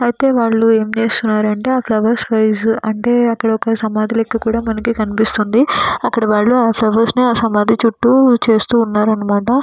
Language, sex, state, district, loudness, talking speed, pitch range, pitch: Telugu, female, Andhra Pradesh, Srikakulam, -14 LUFS, 135 wpm, 220-240 Hz, 225 Hz